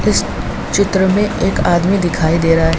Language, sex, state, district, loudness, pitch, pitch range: Hindi, female, Bihar, Saran, -15 LUFS, 175 Hz, 165-195 Hz